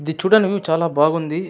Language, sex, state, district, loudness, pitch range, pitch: Telugu, male, Andhra Pradesh, Anantapur, -18 LUFS, 160-190 Hz, 165 Hz